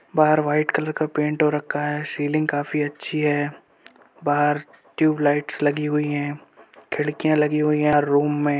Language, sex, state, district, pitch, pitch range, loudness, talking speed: Hindi, male, Uttar Pradesh, Budaun, 150 Hz, 145-150 Hz, -22 LUFS, 190 wpm